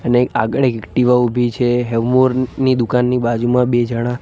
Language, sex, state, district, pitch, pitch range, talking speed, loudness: Gujarati, male, Gujarat, Gandhinagar, 125 Hz, 120-125 Hz, 170 wpm, -16 LUFS